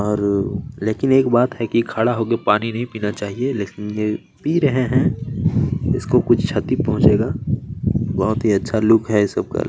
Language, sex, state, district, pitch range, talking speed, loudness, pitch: Hindi, male, Chhattisgarh, Kabirdham, 105-120 Hz, 185 wpm, -19 LUFS, 110 Hz